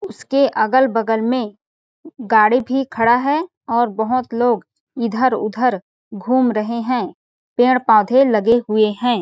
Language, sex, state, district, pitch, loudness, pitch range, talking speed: Hindi, female, Chhattisgarh, Balrampur, 240 Hz, -17 LUFS, 220-255 Hz, 145 wpm